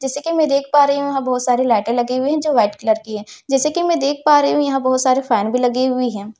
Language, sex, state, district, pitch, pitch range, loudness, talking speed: Hindi, female, Delhi, New Delhi, 260 Hz, 245-285 Hz, -17 LUFS, 320 wpm